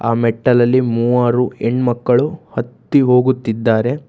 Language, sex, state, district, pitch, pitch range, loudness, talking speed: Kannada, male, Karnataka, Bangalore, 120 Hz, 115-125 Hz, -15 LUFS, 90 wpm